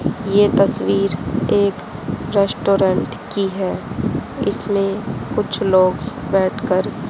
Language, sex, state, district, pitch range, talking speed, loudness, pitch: Hindi, female, Haryana, Charkhi Dadri, 190-205 Hz, 95 wpm, -18 LUFS, 200 Hz